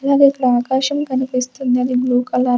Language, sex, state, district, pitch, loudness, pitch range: Telugu, female, Andhra Pradesh, Sri Satya Sai, 255 Hz, -17 LUFS, 250-270 Hz